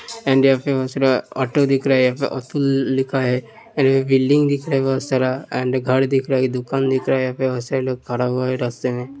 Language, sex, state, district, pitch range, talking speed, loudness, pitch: Hindi, male, Uttar Pradesh, Hamirpur, 130-135 Hz, 235 wpm, -19 LUFS, 130 Hz